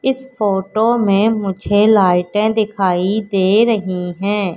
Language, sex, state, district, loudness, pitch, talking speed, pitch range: Hindi, female, Madhya Pradesh, Katni, -15 LUFS, 205 Hz, 120 wpm, 190-220 Hz